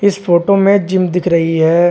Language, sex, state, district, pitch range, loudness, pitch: Hindi, male, Uttar Pradesh, Shamli, 170-195 Hz, -12 LUFS, 180 Hz